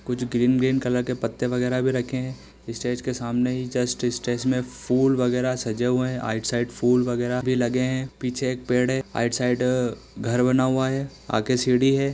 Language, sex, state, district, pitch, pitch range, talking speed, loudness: Hindi, male, Bihar, East Champaran, 125 Hz, 120-130 Hz, 210 wpm, -24 LUFS